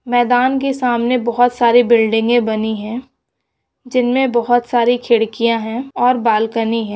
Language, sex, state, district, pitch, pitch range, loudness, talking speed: Hindi, female, West Bengal, Jalpaiguri, 240 Hz, 230-245 Hz, -15 LUFS, 130 wpm